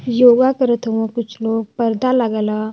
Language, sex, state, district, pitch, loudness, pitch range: Hindi, male, Uttar Pradesh, Varanasi, 230 Hz, -17 LUFS, 225-245 Hz